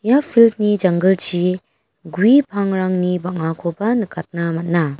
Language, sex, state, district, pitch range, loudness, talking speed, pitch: Garo, female, Meghalaya, West Garo Hills, 170-210 Hz, -17 LUFS, 95 wpm, 185 Hz